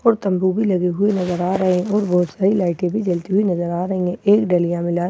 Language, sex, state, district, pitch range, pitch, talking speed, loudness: Hindi, female, Bihar, Katihar, 180-200 Hz, 185 Hz, 320 wpm, -19 LUFS